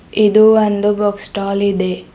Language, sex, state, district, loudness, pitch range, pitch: Kannada, female, Karnataka, Bidar, -14 LUFS, 200-210 Hz, 205 Hz